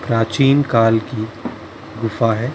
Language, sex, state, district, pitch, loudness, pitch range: Hindi, male, Maharashtra, Mumbai Suburban, 115 Hz, -17 LUFS, 110-120 Hz